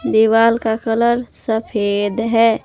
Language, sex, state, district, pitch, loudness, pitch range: Hindi, female, Jharkhand, Palamu, 225 Hz, -16 LUFS, 220-230 Hz